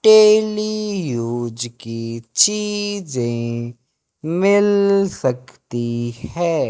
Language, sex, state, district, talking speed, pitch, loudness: Hindi, male, Madhya Pradesh, Katni, 65 wpm, 150 Hz, -19 LUFS